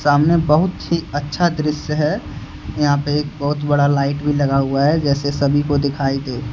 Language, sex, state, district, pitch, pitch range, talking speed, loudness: Hindi, male, Jharkhand, Deoghar, 145 Hz, 140-150 Hz, 195 wpm, -18 LUFS